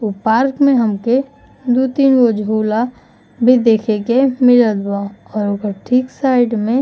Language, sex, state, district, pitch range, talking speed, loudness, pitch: Bhojpuri, female, Uttar Pradesh, Gorakhpur, 215-255 Hz, 165 wpm, -15 LUFS, 235 Hz